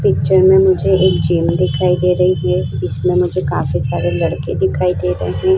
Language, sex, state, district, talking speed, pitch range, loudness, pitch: Hindi, female, Bihar, Vaishali, 195 wpm, 120-180 Hz, -15 LUFS, 140 Hz